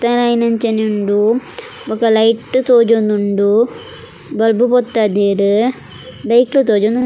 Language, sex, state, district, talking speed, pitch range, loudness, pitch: Tulu, female, Karnataka, Dakshina Kannada, 95 wpm, 215-240 Hz, -14 LUFS, 230 Hz